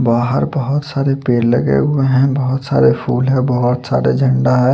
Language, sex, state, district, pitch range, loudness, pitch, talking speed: Hindi, male, Chandigarh, Chandigarh, 115-135 Hz, -15 LUFS, 125 Hz, 190 wpm